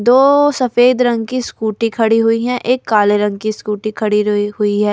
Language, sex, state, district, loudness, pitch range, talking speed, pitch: Hindi, female, Delhi, New Delhi, -14 LUFS, 210-245 Hz, 195 wpm, 225 Hz